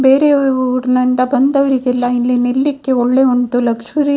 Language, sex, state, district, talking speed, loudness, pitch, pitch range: Kannada, female, Karnataka, Dakshina Kannada, 130 wpm, -14 LUFS, 255 Hz, 245-270 Hz